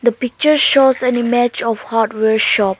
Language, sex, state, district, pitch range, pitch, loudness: English, female, Arunachal Pradesh, Lower Dibang Valley, 220-255 Hz, 240 Hz, -14 LUFS